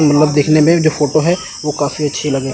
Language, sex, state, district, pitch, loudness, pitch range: Hindi, male, Chandigarh, Chandigarh, 150 Hz, -14 LUFS, 145-155 Hz